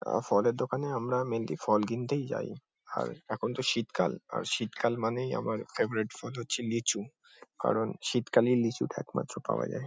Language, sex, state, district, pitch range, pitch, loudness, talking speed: Bengali, male, West Bengal, Kolkata, 115-125 Hz, 120 Hz, -31 LUFS, 160 wpm